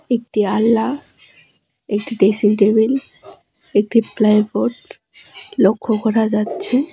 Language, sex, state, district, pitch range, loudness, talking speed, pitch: Bengali, female, West Bengal, Alipurduar, 210-235 Hz, -17 LUFS, 95 wpm, 220 Hz